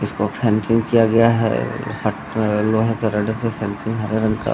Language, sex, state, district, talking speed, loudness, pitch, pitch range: Hindi, male, Bihar, Samastipur, 200 wpm, -19 LUFS, 110 Hz, 105-115 Hz